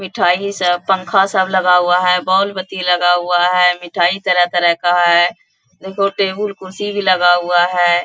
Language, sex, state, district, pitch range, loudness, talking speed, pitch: Hindi, female, Bihar, Bhagalpur, 175-190 Hz, -14 LUFS, 195 wpm, 180 Hz